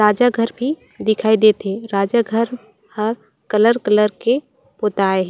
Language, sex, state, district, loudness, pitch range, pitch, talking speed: Chhattisgarhi, female, Chhattisgarh, Raigarh, -18 LUFS, 210-235 Hz, 220 Hz, 145 wpm